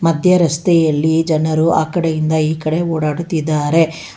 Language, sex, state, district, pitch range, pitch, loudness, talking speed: Kannada, female, Karnataka, Bangalore, 155-165 Hz, 160 Hz, -15 LUFS, 115 wpm